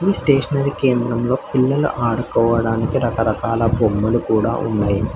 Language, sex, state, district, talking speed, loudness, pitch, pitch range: Telugu, male, Telangana, Hyderabad, 95 wpm, -18 LUFS, 115 Hz, 115-130 Hz